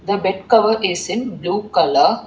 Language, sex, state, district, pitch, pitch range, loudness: English, female, Telangana, Hyderabad, 200 Hz, 190-220 Hz, -17 LUFS